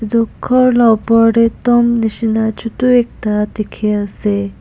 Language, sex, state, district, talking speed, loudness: Nagamese, female, Nagaland, Dimapur, 145 wpm, -14 LUFS